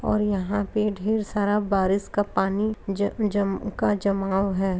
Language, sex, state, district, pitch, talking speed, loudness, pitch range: Hindi, female, Bihar, Darbhanga, 205 Hz, 150 wpm, -24 LUFS, 195-210 Hz